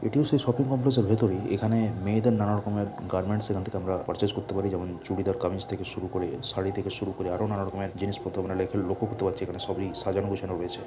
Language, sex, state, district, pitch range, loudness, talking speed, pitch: Bengali, male, West Bengal, Purulia, 95-105 Hz, -29 LUFS, 225 wpm, 100 Hz